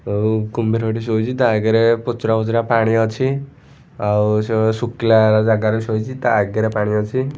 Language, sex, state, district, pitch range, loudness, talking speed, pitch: Odia, male, Odisha, Khordha, 110-115 Hz, -17 LUFS, 155 wpm, 110 Hz